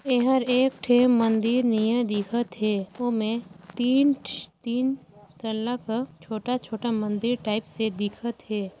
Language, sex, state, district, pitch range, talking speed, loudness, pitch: Chhattisgarhi, female, Chhattisgarh, Sarguja, 215-245 Hz, 125 wpm, -25 LUFS, 230 Hz